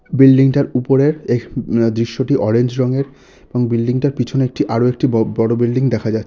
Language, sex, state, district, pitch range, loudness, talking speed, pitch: Bengali, male, West Bengal, North 24 Parganas, 115-135 Hz, -16 LUFS, 170 wpm, 125 Hz